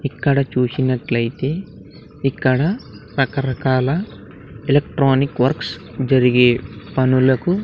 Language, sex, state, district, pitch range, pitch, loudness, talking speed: Telugu, male, Andhra Pradesh, Sri Satya Sai, 125-140 Hz, 130 Hz, -18 LUFS, 65 wpm